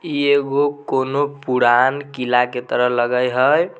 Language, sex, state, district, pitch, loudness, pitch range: Maithili, male, Bihar, Samastipur, 130 Hz, -18 LUFS, 125-145 Hz